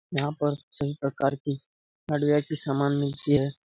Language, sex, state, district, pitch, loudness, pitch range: Hindi, male, Bihar, Jamui, 145 Hz, -27 LUFS, 140-145 Hz